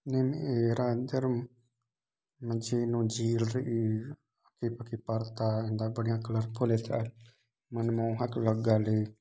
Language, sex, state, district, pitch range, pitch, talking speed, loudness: Sadri, male, Chhattisgarh, Jashpur, 115-120 Hz, 115 Hz, 130 wpm, -32 LUFS